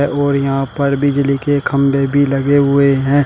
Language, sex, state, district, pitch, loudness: Hindi, male, Uttar Pradesh, Shamli, 140 Hz, -14 LUFS